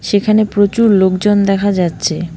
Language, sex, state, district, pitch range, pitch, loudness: Bengali, female, West Bengal, Cooch Behar, 185-205 Hz, 200 Hz, -13 LUFS